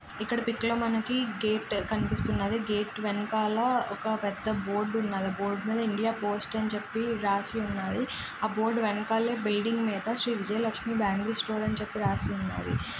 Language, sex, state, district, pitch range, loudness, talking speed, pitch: Telugu, male, Andhra Pradesh, Srikakulam, 205-225 Hz, -30 LUFS, 150 wpm, 215 Hz